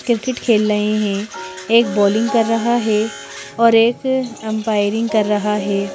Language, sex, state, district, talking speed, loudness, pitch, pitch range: Hindi, female, Madhya Pradesh, Bhopal, 150 wpm, -17 LUFS, 215 Hz, 205-230 Hz